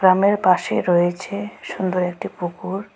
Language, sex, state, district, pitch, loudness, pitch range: Bengali, female, West Bengal, Alipurduar, 185 Hz, -21 LUFS, 180-200 Hz